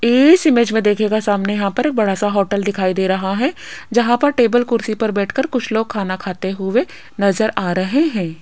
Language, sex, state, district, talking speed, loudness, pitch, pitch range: Hindi, female, Rajasthan, Jaipur, 215 wpm, -17 LUFS, 215 Hz, 195-245 Hz